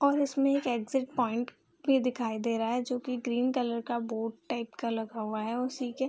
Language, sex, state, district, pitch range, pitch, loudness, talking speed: Hindi, female, Bihar, Gopalganj, 230-260 Hz, 245 Hz, -31 LUFS, 235 wpm